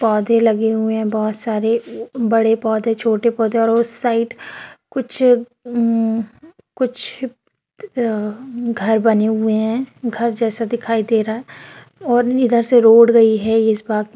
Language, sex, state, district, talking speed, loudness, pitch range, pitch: Hindi, female, Bihar, Darbhanga, 150 wpm, -17 LUFS, 220-240 Hz, 230 Hz